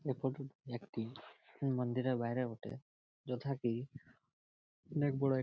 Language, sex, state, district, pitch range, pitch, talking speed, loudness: Bengali, male, West Bengal, Jhargram, 115-135 Hz, 125 Hz, 145 wpm, -39 LUFS